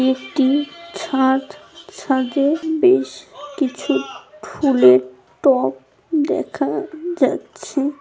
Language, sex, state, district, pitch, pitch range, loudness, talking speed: Bengali, female, West Bengal, Jalpaiguri, 280 Hz, 260-315 Hz, -18 LUFS, 60 wpm